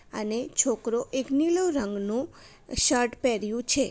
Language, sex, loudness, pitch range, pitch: Gujarati, female, -26 LUFS, 230-270 Hz, 250 Hz